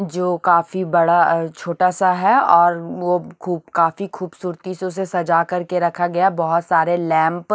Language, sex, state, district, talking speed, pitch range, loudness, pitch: Hindi, female, Punjab, Kapurthala, 185 wpm, 170-185 Hz, -18 LUFS, 175 Hz